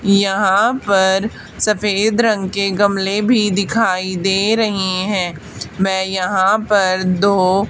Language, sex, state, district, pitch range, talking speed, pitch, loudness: Hindi, female, Haryana, Charkhi Dadri, 190-210 Hz, 115 wpm, 195 Hz, -16 LUFS